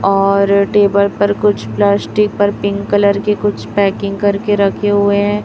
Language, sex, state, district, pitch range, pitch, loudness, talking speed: Hindi, female, Chhattisgarh, Raipur, 200-205 Hz, 200 Hz, -14 LUFS, 165 wpm